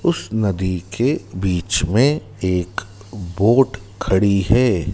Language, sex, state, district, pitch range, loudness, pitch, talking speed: Hindi, male, Madhya Pradesh, Dhar, 95-110 Hz, -19 LUFS, 100 Hz, 110 wpm